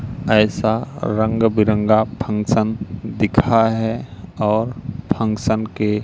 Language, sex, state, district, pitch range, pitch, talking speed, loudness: Hindi, male, Madhya Pradesh, Katni, 105-110 Hz, 110 Hz, 90 wpm, -19 LUFS